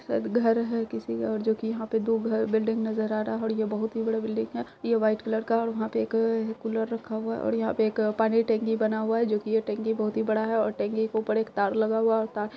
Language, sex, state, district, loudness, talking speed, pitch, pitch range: Hindi, female, Bihar, Saharsa, -27 LUFS, 305 wpm, 220 Hz, 215-225 Hz